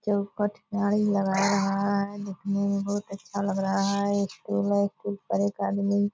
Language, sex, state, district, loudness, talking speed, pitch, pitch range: Hindi, female, Bihar, Purnia, -27 LUFS, 205 wpm, 200 Hz, 195-205 Hz